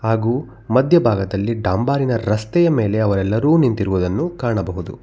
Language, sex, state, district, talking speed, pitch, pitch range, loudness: Kannada, male, Karnataka, Bangalore, 95 wpm, 115 Hz, 100-130 Hz, -18 LUFS